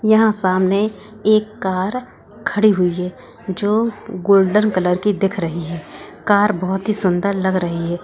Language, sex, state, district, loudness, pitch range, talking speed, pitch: Hindi, male, Bihar, Bhagalpur, -18 LUFS, 185-215 Hz, 155 wpm, 200 Hz